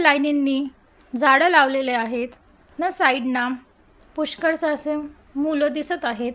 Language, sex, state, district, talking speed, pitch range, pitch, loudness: Marathi, female, Maharashtra, Gondia, 105 wpm, 255-305 Hz, 290 Hz, -21 LUFS